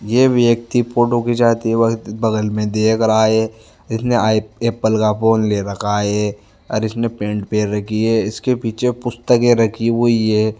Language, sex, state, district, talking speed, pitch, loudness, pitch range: Marwari, male, Rajasthan, Nagaur, 165 wpm, 110 Hz, -17 LUFS, 110-115 Hz